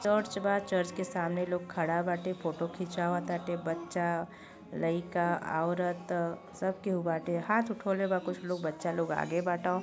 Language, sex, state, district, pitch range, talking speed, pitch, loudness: Bhojpuri, male, Uttar Pradesh, Gorakhpur, 170-185 Hz, 145 wpm, 175 Hz, -33 LUFS